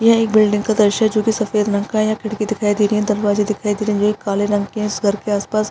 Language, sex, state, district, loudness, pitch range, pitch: Hindi, female, Bihar, East Champaran, -17 LUFS, 205-215 Hz, 210 Hz